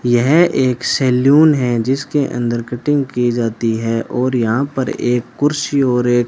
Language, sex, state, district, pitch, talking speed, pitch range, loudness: Hindi, male, Rajasthan, Bikaner, 125 Hz, 170 wpm, 120-140 Hz, -16 LUFS